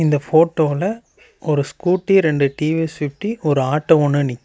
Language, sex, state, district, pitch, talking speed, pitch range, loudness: Tamil, male, Tamil Nadu, Namakkal, 155 Hz, 150 wpm, 145-170 Hz, -18 LUFS